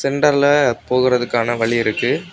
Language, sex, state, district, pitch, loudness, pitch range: Tamil, male, Tamil Nadu, Kanyakumari, 125 Hz, -17 LUFS, 115-140 Hz